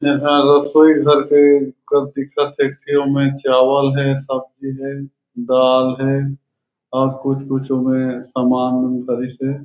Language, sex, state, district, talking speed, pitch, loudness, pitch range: Chhattisgarhi, male, Chhattisgarh, Raigarh, 150 wpm, 135 Hz, -16 LUFS, 130-140 Hz